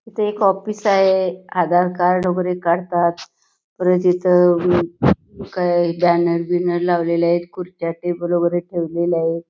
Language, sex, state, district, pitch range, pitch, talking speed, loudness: Marathi, female, Karnataka, Belgaum, 170-180 Hz, 175 Hz, 120 wpm, -18 LUFS